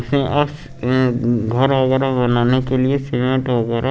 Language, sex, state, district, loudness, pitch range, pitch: Hindi, male, Chandigarh, Chandigarh, -18 LUFS, 120-135 Hz, 130 Hz